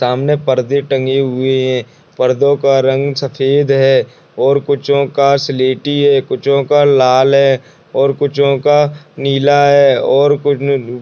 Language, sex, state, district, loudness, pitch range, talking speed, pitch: Hindi, male, Bihar, Purnia, -12 LUFS, 135-145 Hz, 140 wpm, 140 Hz